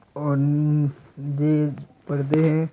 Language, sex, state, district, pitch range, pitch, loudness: Hindi, male, Uttar Pradesh, Deoria, 140-150 Hz, 145 Hz, -23 LUFS